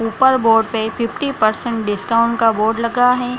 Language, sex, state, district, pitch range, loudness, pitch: Hindi, female, Bihar, Samastipur, 225-245 Hz, -16 LUFS, 230 Hz